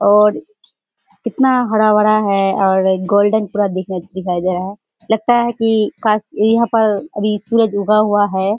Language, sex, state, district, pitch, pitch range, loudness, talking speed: Hindi, female, Bihar, Kishanganj, 210 Hz, 195-220 Hz, -15 LUFS, 160 wpm